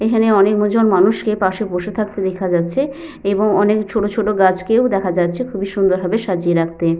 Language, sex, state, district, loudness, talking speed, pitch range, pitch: Bengali, female, West Bengal, Paschim Medinipur, -17 LUFS, 180 wpm, 185-215 Hz, 205 Hz